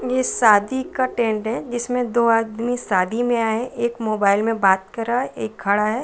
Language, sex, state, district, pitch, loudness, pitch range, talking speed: Hindi, female, Bihar, Saran, 230 Hz, -20 LUFS, 215-245 Hz, 220 wpm